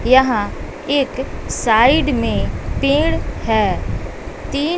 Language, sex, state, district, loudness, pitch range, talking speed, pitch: Hindi, female, Bihar, West Champaran, -17 LUFS, 260-290 Hz, 90 wpm, 280 Hz